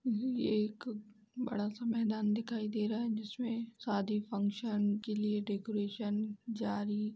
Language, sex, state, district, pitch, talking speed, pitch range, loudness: Hindi, female, Uttar Pradesh, Jalaun, 215 Hz, 135 wpm, 210-230 Hz, -36 LUFS